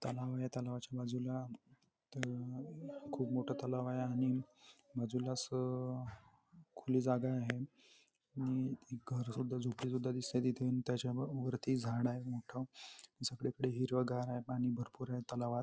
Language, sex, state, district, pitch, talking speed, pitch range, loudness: Marathi, male, Maharashtra, Nagpur, 125 Hz, 135 wpm, 125-130 Hz, -40 LUFS